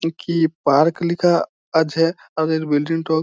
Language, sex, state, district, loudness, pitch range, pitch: Bengali, male, West Bengal, Malda, -19 LUFS, 160-170 Hz, 165 Hz